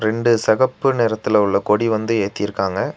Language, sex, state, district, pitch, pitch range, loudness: Tamil, male, Tamil Nadu, Nilgiris, 110 Hz, 105-120 Hz, -18 LUFS